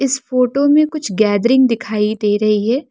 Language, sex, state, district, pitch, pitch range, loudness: Hindi, female, Arunachal Pradesh, Lower Dibang Valley, 245 Hz, 210-270 Hz, -15 LUFS